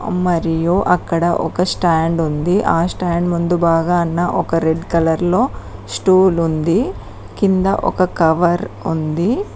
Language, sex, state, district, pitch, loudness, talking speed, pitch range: Telugu, female, Telangana, Mahabubabad, 170 Hz, -16 LUFS, 120 wpm, 165-180 Hz